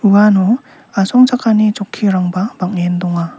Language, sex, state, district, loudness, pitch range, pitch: Garo, male, Meghalaya, South Garo Hills, -14 LUFS, 180-220 Hz, 200 Hz